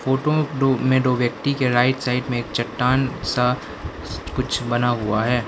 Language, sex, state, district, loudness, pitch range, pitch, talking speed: Hindi, male, Arunachal Pradesh, Lower Dibang Valley, -21 LUFS, 120-130 Hz, 125 Hz, 165 wpm